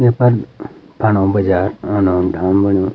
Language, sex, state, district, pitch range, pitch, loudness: Garhwali, male, Uttarakhand, Uttarkashi, 95-110 Hz, 100 Hz, -15 LUFS